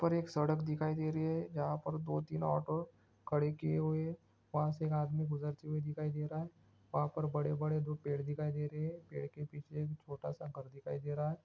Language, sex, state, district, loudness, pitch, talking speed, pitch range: Hindi, male, Andhra Pradesh, Srikakulam, -38 LUFS, 150 Hz, 250 wpm, 145-155 Hz